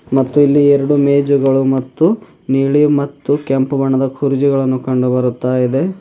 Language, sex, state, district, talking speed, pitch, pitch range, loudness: Kannada, male, Karnataka, Bidar, 130 wpm, 135 Hz, 130-145 Hz, -14 LUFS